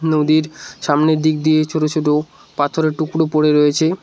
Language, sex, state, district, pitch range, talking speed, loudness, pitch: Bengali, male, West Bengal, Cooch Behar, 150-155 Hz, 150 wpm, -16 LUFS, 155 Hz